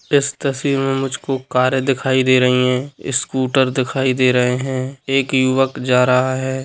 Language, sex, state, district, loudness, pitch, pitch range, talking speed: Hindi, male, Bihar, Sitamarhi, -17 LUFS, 130 Hz, 130-135 Hz, 170 wpm